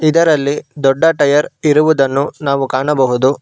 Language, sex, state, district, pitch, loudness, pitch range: Kannada, male, Karnataka, Bangalore, 145 Hz, -13 LUFS, 135-155 Hz